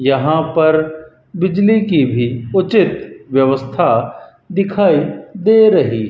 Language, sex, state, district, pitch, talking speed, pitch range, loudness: Hindi, male, Rajasthan, Bikaner, 160 Hz, 110 wpm, 135-195 Hz, -14 LUFS